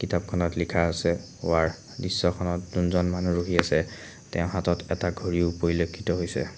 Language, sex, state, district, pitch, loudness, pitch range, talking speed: Assamese, male, Assam, Sonitpur, 85 Hz, -27 LUFS, 85-90 Hz, 135 wpm